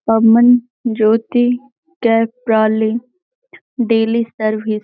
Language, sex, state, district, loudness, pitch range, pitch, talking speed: Hindi, female, Bihar, Gaya, -15 LUFS, 225-245 Hz, 230 Hz, 60 wpm